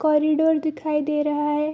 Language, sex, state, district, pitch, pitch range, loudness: Hindi, female, Bihar, Bhagalpur, 300 Hz, 295-310 Hz, -22 LUFS